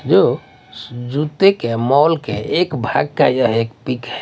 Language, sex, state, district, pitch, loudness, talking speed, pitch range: Hindi, male, Odisha, Nuapada, 125 Hz, -17 LUFS, 155 wpm, 115-150 Hz